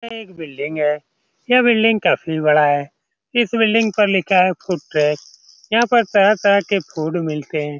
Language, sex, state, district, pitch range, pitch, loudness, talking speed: Hindi, male, Bihar, Saran, 150-220 Hz, 185 Hz, -17 LUFS, 175 wpm